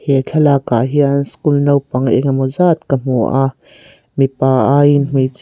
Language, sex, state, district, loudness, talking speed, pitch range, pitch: Mizo, female, Mizoram, Aizawl, -14 LUFS, 155 wpm, 130-145 Hz, 135 Hz